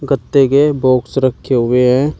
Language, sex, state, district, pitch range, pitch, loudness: Hindi, male, Uttar Pradesh, Shamli, 125-140 Hz, 130 Hz, -13 LUFS